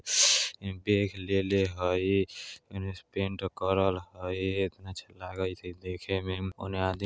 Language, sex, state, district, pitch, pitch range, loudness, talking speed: Bajjika, male, Bihar, Vaishali, 95 Hz, 90-95 Hz, -30 LUFS, 155 wpm